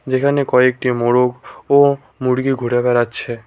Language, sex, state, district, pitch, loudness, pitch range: Bengali, male, West Bengal, Cooch Behar, 125 Hz, -16 LUFS, 120-135 Hz